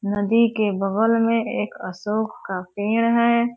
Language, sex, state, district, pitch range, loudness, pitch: Hindi, female, Bihar, Purnia, 205-230 Hz, -21 LUFS, 220 Hz